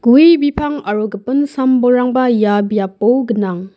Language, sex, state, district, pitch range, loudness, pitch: Garo, female, Meghalaya, West Garo Hills, 205-265 Hz, -14 LUFS, 245 Hz